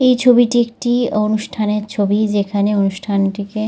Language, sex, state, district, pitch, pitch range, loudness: Bengali, female, West Bengal, Dakshin Dinajpur, 210 Hz, 205-240 Hz, -16 LUFS